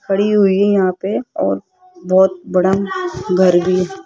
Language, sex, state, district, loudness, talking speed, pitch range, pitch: Hindi, female, Rajasthan, Jaipur, -15 LUFS, 135 wpm, 185-215 Hz, 195 Hz